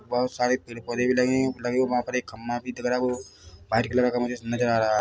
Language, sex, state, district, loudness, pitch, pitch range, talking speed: Hindi, male, Chhattisgarh, Bilaspur, -26 LUFS, 125 Hz, 115-125 Hz, 325 wpm